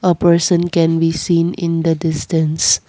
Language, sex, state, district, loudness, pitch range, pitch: English, female, Assam, Kamrup Metropolitan, -15 LUFS, 160-170 Hz, 165 Hz